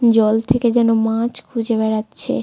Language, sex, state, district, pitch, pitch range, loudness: Bengali, female, West Bengal, Jalpaiguri, 225 Hz, 220-235 Hz, -17 LUFS